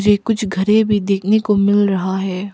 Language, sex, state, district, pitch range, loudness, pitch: Hindi, female, Arunachal Pradesh, Papum Pare, 195-210 Hz, -16 LUFS, 205 Hz